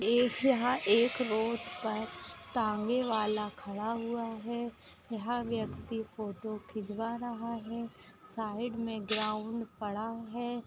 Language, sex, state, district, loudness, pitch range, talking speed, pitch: Hindi, female, Maharashtra, Chandrapur, -34 LUFS, 215-235 Hz, 120 wpm, 225 Hz